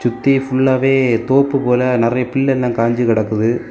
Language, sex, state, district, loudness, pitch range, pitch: Tamil, male, Tamil Nadu, Kanyakumari, -15 LUFS, 115-135 Hz, 125 Hz